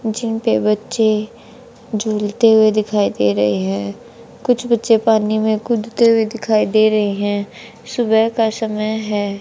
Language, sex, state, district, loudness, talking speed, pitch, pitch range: Hindi, male, Haryana, Charkhi Dadri, -17 LUFS, 145 wpm, 220 Hz, 210-230 Hz